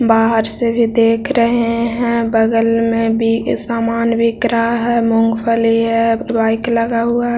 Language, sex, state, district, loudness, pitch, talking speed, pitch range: Hindi, male, Bihar, Jahanabad, -15 LUFS, 230 Hz, 155 wpm, 225-235 Hz